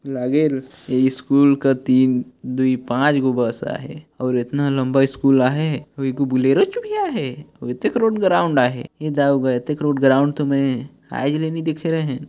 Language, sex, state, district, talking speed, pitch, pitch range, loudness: Chhattisgarhi, male, Chhattisgarh, Sarguja, 185 wpm, 135 Hz, 130-150 Hz, -19 LUFS